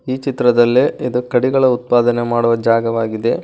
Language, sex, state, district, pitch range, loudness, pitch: Kannada, male, Karnataka, Koppal, 115-125 Hz, -15 LUFS, 120 Hz